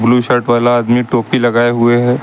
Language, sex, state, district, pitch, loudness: Hindi, male, Uttar Pradesh, Lucknow, 120 Hz, -12 LUFS